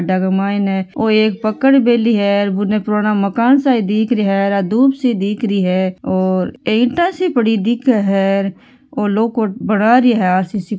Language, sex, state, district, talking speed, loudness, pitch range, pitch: Marwari, female, Rajasthan, Nagaur, 180 wpm, -15 LUFS, 195-235 Hz, 210 Hz